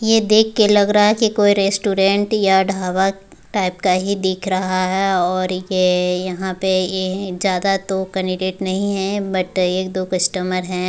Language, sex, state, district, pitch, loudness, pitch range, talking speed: Hindi, female, Bihar, Muzaffarpur, 190 Hz, -18 LUFS, 185-200 Hz, 165 wpm